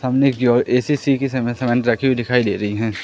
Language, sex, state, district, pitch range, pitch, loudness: Hindi, male, Madhya Pradesh, Katni, 120-130 Hz, 125 Hz, -18 LUFS